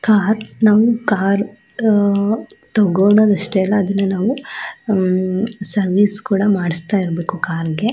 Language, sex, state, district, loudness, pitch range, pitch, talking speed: Kannada, female, Karnataka, Shimoga, -17 LUFS, 190-215 Hz, 200 Hz, 120 wpm